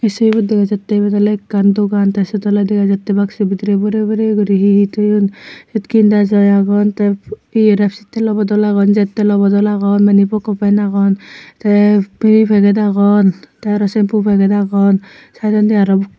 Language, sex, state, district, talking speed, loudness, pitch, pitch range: Chakma, female, Tripura, Unakoti, 180 wpm, -13 LUFS, 205 Hz, 200-210 Hz